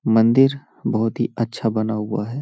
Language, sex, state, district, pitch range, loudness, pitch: Hindi, male, Uttar Pradesh, Hamirpur, 110-120 Hz, -20 LUFS, 115 Hz